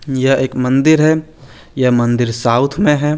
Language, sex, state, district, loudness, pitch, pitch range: Hindi, male, Chandigarh, Chandigarh, -14 LUFS, 135 Hz, 125-150 Hz